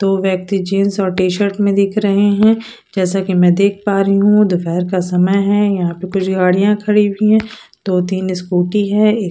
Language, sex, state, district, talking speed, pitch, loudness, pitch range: Hindi, female, Odisha, Sambalpur, 215 wpm, 195 Hz, -14 LUFS, 185-205 Hz